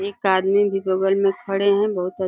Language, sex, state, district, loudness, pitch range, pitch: Hindi, female, Uttar Pradesh, Deoria, -20 LUFS, 190-200 Hz, 195 Hz